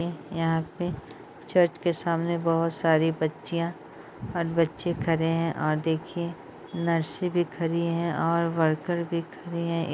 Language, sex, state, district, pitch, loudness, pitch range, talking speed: Hindi, female, Bihar, Saharsa, 170 Hz, -27 LUFS, 165-170 Hz, 140 wpm